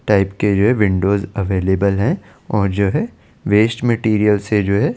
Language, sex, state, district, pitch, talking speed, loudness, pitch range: Hindi, male, Chandigarh, Chandigarh, 100 Hz, 195 wpm, -17 LUFS, 100-105 Hz